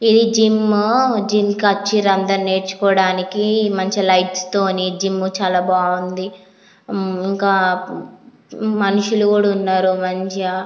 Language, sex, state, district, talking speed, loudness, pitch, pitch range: Telugu, female, Andhra Pradesh, Anantapur, 110 wpm, -17 LUFS, 195 Hz, 185-205 Hz